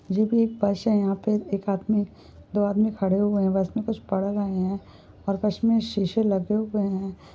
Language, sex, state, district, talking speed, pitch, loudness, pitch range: Hindi, female, Uttar Pradesh, Ghazipur, 220 wpm, 205 Hz, -25 LUFS, 195-215 Hz